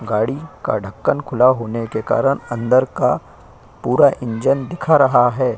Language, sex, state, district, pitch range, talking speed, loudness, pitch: Hindi, male, Uttar Pradesh, Jyotiba Phule Nagar, 115-135 Hz, 140 wpm, -17 LUFS, 125 Hz